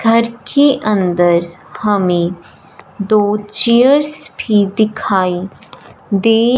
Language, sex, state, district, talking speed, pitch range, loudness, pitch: Hindi, male, Punjab, Fazilka, 80 wpm, 190-230 Hz, -14 LUFS, 210 Hz